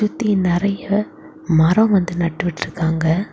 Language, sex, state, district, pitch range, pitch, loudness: Tamil, female, Tamil Nadu, Kanyakumari, 165-200 Hz, 180 Hz, -18 LUFS